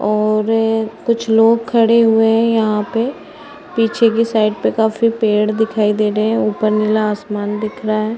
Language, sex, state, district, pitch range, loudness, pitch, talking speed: Hindi, female, Uttar Pradesh, Varanasi, 215-230 Hz, -15 LUFS, 220 Hz, 175 wpm